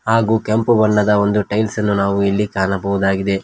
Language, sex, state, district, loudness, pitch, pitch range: Kannada, male, Karnataka, Koppal, -16 LUFS, 105 Hz, 100-110 Hz